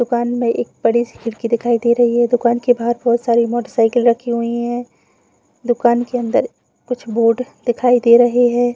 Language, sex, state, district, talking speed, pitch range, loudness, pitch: Hindi, female, Jharkhand, Jamtara, 190 wpm, 235-245 Hz, -16 LUFS, 240 Hz